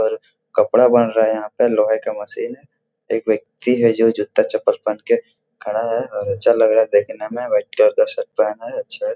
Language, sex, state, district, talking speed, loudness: Hindi, male, Bihar, Jahanabad, 235 wpm, -18 LUFS